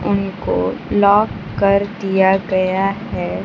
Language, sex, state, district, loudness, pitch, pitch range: Hindi, female, Bihar, Kaimur, -17 LUFS, 195 Hz, 190-200 Hz